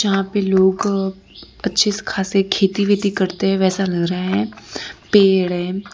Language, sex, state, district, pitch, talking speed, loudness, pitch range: Hindi, female, Gujarat, Valsad, 195 Hz, 160 wpm, -18 LUFS, 190-200 Hz